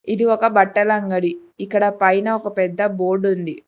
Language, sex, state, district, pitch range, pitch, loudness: Telugu, female, Telangana, Hyderabad, 185-210 Hz, 200 Hz, -18 LUFS